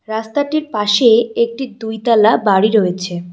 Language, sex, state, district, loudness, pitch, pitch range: Bengali, female, West Bengal, Cooch Behar, -15 LUFS, 220 Hz, 205-235 Hz